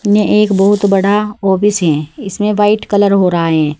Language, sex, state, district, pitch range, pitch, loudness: Hindi, female, Uttar Pradesh, Saharanpur, 185-210 Hz, 200 Hz, -12 LUFS